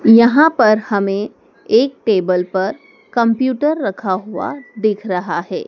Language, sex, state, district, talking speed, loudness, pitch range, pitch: Hindi, female, Madhya Pradesh, Dhar, 125 wpm, -16 LUFS, 195-265 Hz, 225 Hz